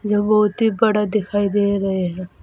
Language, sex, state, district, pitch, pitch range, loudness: Hindi, female, Uttar Pradesh, Saharanpur, 205 Hz, 200-215 Hz, -19 LUFS